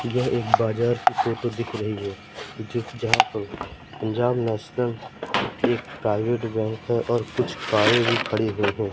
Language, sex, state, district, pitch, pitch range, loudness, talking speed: Hindi, male, Madhya Pradesh, Katni, 115 Hz, 110-120 Hz, -24 LUFS, 140 wpm